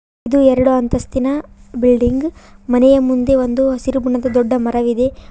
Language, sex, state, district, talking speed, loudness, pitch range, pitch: Kannada, female, Karnataka, Koppal, 125 wpm, -15 LUFS, 245-265 Hz, 255 Hz